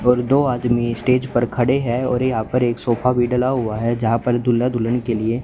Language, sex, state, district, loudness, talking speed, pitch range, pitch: Hindi, male, Haryana, Charkhi Dadri, -19 LUFS, 240 wpm, 120-125 Hz, 120 Hz